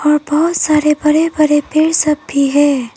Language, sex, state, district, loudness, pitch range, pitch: Hindi, female, Arunachal Pradesh, Papum Pare, -13 LUFS, 290-310 Hz, 300 Hz